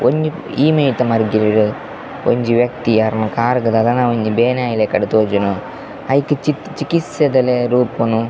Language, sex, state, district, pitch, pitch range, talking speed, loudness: Tulu, male, Karnataka, Dakshina Kannada, 120 Hz, 110-140 Hz, 125 wpm, -16 LUFS